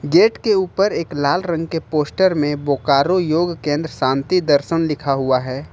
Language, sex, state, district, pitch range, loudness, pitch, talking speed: Hindi, male, Jharkhand, Ranchi, 140-180 Hz, -18 LUFS, 155 Hz, 180 wpm